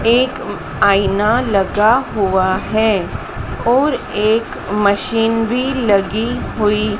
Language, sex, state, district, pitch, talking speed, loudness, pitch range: Hindi, female, Madhya Pradesh, Dhar, 215 Hz, 95 wpm, -16 LUFS, 200-230 Hz